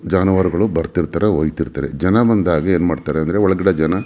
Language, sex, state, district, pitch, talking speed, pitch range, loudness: Kannada, male, Karnataka, Mysore, 90 Hz, 175 wpm, 80-95 Hz, -17 LUFS